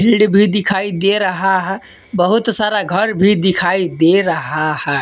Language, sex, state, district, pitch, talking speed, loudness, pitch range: Hindi, male, Jharkhand, Palamu, 195 Hz, 165 wpm, -14 LUFS, 175-205 Hz